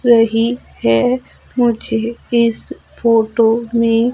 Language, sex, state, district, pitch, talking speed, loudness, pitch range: Hindi, female, Madhya Pradesh, Umaria, 230 Hz, 85 wpm, -16 LUFS, 225-240 Hz